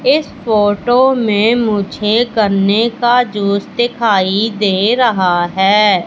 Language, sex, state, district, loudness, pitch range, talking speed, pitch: Hindi, female, Madhya Pradesh, Katni, -13 LUFS, 200-240 Hz, 110 wpm, 215 Hz